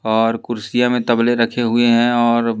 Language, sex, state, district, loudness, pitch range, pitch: Hindi, male, Madhya Pradesh, Umaria, -16 LUFS, 115-120 Hz, 120 Hz